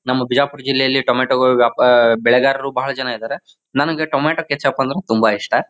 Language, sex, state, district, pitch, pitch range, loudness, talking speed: Kannada, male, Karnataka, Bijapur, 130 Hz, 125-140 Hz, -16 LUFS, 160 wpm